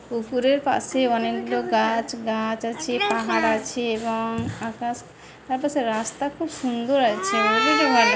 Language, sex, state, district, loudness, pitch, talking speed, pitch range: Bengali, female, West Bengal, Malda, -23 LUFS, 230 Hz, 140 wpm, 220-255 Hz